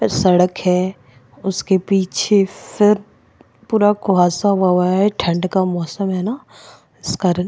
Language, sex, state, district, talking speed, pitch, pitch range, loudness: Hindi, female, Goa, North and South Goa, 130 wpm, 185 Hz, 180-200 Hz, -17 LUFS